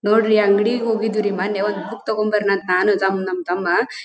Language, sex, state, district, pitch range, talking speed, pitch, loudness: Kannada, female, Karnataka, Dharwad, 195-215 Hz, 190 wpm, 205 Hz, -19 LUFS